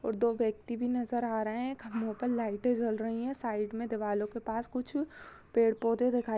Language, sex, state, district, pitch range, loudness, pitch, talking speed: Hindi, female, Chhattisgarh, Bastar, 220-245 Hz, -33 LUFS, 230 Hz, 215 wpm